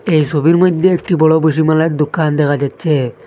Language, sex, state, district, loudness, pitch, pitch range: Bengali, male, Assam, Hailakandi, -13 LUFS, 155 Hz, 150-165 Hz